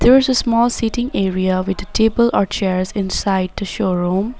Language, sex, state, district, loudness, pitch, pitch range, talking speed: English, female, Assam, Sonitpur, -17 LUFS, 200 Hz, 190-235 Hz, 205 wpm